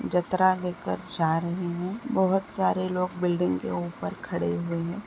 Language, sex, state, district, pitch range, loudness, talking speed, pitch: Hindi, female, Uttar Pradesh, Etah, 165-185 Hz, -27 LUFS, 165 wpm, 180 Hz